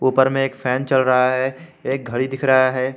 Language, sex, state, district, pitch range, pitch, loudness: Hindi, male, Jharkhand, Garhwa, 130-135 Hz, 130 Hz, -19 LUFS